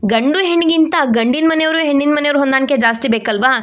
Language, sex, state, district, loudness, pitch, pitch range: Kannada, female, Karnataka, Shimoga, -14 LUFS, 280 Hz, 235-315 Hz